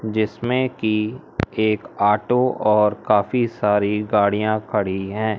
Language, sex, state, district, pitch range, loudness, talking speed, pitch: Hindi, male, Madhya Pradesh, Umaria, 105-110 Hz, -20 LUFS, 110 wpm, 110 Hz